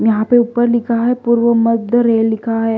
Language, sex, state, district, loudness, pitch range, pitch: Hindi, female, Delhi, New Delhi, -14 LUFS, 225-240 Hz, 230 Hz